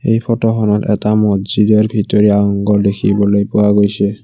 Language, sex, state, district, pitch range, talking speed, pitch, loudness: Assamese, male, Assam, Kamrup Metropolitan, 100-105 Hz, 125 wpm, 105 Hz, -13 LUFS